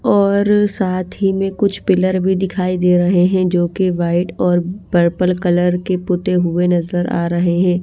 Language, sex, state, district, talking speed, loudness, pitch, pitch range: Hindi, female, Odisha, Malkangiri, 185 wpm, -16 LUFS, 180 Hz, 175-190 Hz